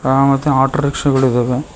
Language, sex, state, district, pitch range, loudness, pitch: Kannada, male, Karnataka, Koppal, 130-140 Hz, -15 LUFS, 135 Hz